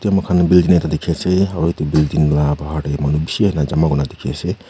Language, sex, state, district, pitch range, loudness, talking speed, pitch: Nagamese, male, Nagaland, Kohima, 75-90 Hz, -17 LUFS, 270 wpm, 80 Hz